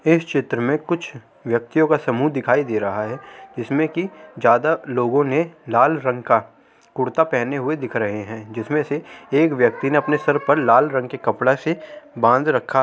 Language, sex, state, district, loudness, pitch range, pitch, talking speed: Hindi, male, Uttar Pradesh, Hamirpur, -20 LUFS, 120-155 Hz, 140 Hz, 190 wpm